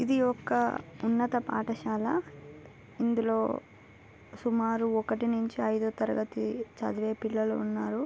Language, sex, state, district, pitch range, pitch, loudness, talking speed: Telugu, female, Telangana, Nalgonda, 145-230 Hz, 220 Hz, -31 LUFS, 95 wpm